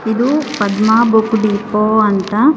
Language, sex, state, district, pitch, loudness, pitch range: Kannada, female, Karnataka, Bidar, 220 Hz, -13 LUFS, 210-235 Hz